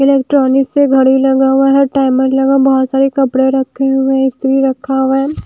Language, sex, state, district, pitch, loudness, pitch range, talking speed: Hindi, female, Haryana, Jhajjar, 270 Hz, -11 LUFS, 265-270 Hz, 210 wpm